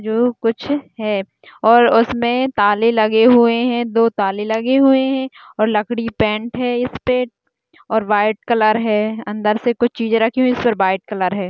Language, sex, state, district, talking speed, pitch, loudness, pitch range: Hindi, female, Bihar, Purnia, 175 wpm, 230 Hz, -16 LUFS, 215-245 Hz